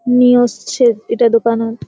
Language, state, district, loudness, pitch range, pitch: Surjapuri, Bihar, Kishanganj, -13 LUFS, 230-245 Hz, 235 Hz